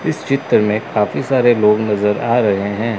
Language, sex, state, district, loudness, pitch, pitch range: Hindi, male, Chandigarh, Chandigarh, -16 LUFS, 105 Hz, 105-120 Hz